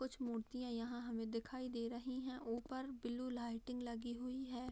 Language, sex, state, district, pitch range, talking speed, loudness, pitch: Hindi, female, Bihar, Madhepura, 235-255 Hz, 180 wpm, -46 LUFS, 245 Hz